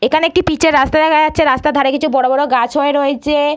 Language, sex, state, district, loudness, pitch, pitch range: Bengali, female, West Bengal, Purulia, -13 LUFS, 295 Hz, 275-310 Hz